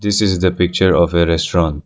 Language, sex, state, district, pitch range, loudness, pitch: English, male, Arunachal Pradesh, Lower Dibang Valley, 85-95 Hz, -15 LUFS, 90 Hz